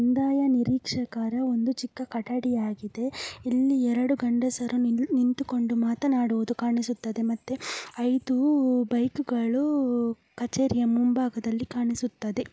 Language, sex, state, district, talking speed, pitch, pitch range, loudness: Kannada, female, Karnataka, Dakshina Kannada, 90 wpm, 245 Hz, 235-255 Hz, -26 LUFS